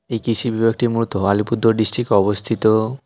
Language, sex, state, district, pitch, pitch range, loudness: Bengali, male, West Bengal, Alipurduar, 115 Hz, 110-115 Hz, -18 LUFS